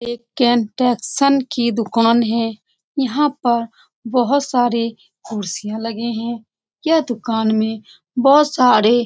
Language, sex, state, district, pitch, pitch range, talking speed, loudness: Hindi, female, Bihar, Saran, 235 Hz, 225-255 Hz, 120 wpm, -18 LUFS